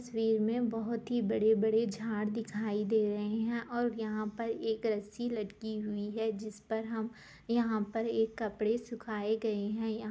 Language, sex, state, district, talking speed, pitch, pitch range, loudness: Hindi, female, Jharkhand, Sahebganj, 180 wpm, 220 Hz, 215-230 Hz, -34 LUFS